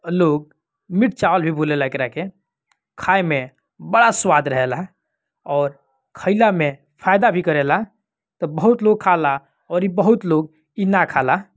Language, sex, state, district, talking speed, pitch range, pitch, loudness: Bhojpuri, male, Bihar, Gopalganj, 155 wpm, 145-195 Hz, 170 Hz, -18 LUFS